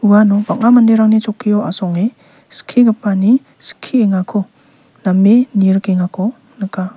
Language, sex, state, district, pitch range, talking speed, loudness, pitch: Garo, male, Meghalaya, South Garo Hills, 195-225 Hz, 85 wpm, -13 LUFS, 210 Hz